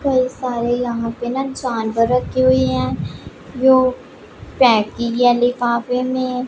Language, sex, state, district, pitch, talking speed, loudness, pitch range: Hindi, female, Punjab, Pathankot, 245 Hz, 130 wpm, -17 LUFS, 230-255 Hz